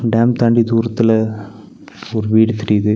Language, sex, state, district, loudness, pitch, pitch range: Tamil, male, Tamil Nadu, Nilgiris, -15 LUFS, 110 Hz, 105-115 Hz